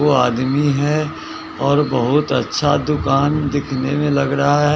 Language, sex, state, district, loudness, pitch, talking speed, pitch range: Hindi, male, Bihar, West Champaran, -17 LUFS, 145 Hz, 150 wpm, 135-150 Hz